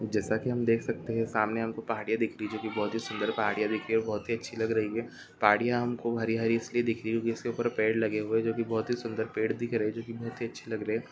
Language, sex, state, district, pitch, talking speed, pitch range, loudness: Hindi, male, Chhattisgarh, Bastar, 115 Hz, 320 wpm, 110-115 Hz, -30 LUFS